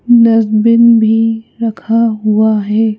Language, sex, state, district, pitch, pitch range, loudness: Hindi, female, Madhya Pradesh, Bhopal, 225 Hz, 220-230 Hz, -11 LUFS